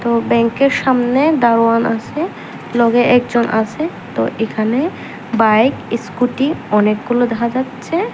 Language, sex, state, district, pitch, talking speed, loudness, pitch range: Bengali, female, Tripura, Unakoti, 240 Hz, 110 wpm, -15 LUFS, 230-260 Hz